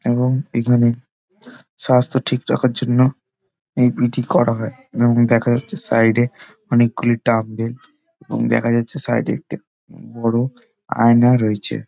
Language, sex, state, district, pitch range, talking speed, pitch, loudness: Bengali, male, West Bengal, Dakshin Dinajpur, 115-130 Hz, 130 wpm, 120 Hz, -18 LUFS